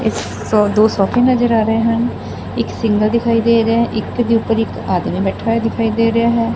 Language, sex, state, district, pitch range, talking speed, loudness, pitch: Punjabi, female, Punjab, Fazilka, 225-235 Hz, 190 wpm, -15 LUFS, 230 Hz